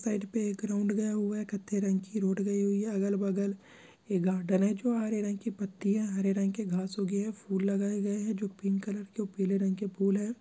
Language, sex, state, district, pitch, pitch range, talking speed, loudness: Hindi, male, Chhattisgarh, Bilaspur, 200 Hz, 195-210 Hz, 265 wpm, -31 LUFS